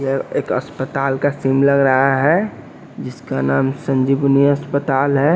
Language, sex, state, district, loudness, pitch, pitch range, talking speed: Hindi, male, Bihar, West Champaran, -17 LUFS, 135 Hz, 135-140 Hz, 155 wpm